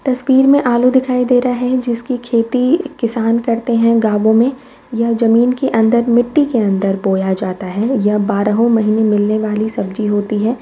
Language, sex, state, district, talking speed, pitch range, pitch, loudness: Hindi, female, Uttar Pradesh, Varanasi, 180 wpm, 215-250 Hz, 230 Hz, -14 LUFS